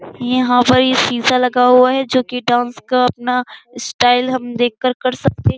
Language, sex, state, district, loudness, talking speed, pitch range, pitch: Hindi, female, Uttar Pradesh, Jyotiba Phule Nagar, -15 LUFS, 185 wpm, 245-255 Hz, 250 Hz